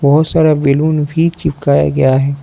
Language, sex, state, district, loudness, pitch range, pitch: Hindi, male, Arunachal Pradesh, Lower Dibang Valley, -13 LUFS, 140-155 Hz, 145 Hz